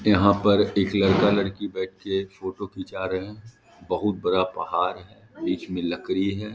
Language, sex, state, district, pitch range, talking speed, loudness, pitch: Hindi, male, Bihar, Muzaffarpur, 95-105 Hz, 185 wpm, -24 LUFS, 100 Hz